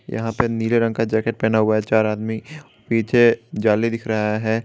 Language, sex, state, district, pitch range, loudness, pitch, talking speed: Hindi, male, Jharkhand, Garhwa, 110-115 Hz, -20 LUFS, 110 Hz, 205 wpm